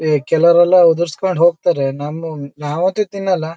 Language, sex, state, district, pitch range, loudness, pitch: Kannada, male, Karnataka, Shimoga, 150-180 Hz, -15 LUFS, 165 Hz